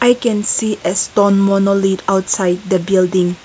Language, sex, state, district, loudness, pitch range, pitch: English, female, Nagaland, Kohima, -15 LUFS, 185-205 Hz, 195 Hz